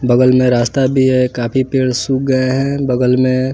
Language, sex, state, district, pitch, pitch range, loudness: Hindi, male, Bihar, West Champaran, 130 Hz, 125-130 Hz, -14 LUFS